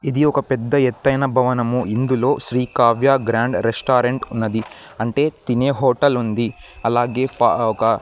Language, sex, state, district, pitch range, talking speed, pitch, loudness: Telugu, male, Andhra Pradesh, Sri Satya Sai, 115-135 Hz, 135 wpm, 125 Hz, -18 LUFS